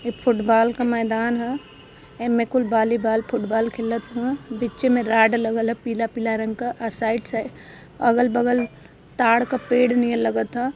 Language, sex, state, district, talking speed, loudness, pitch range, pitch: Hindi, female, Uttar Pradesh, Varanasi, 175 wpm, -22 LUFS, 225-245 Hz, 235 Hz